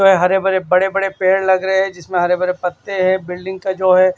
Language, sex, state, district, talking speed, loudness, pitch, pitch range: Hindi, male, Maharashtra, Washim, 260 wpm, -16 LUFS, 190 Hz, 180-190 Hz